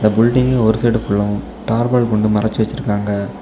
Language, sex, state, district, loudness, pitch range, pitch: Tamil, male, Tamil Nadu, Kanyakumari, -16 LUFS, 105-120 Hz, 110 Hz